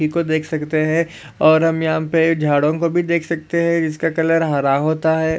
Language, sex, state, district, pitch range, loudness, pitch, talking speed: Hindi, male, Maharashtra, Solapur, 155-165 Hz, -18 LUFS, 160 Hz, 225 wpm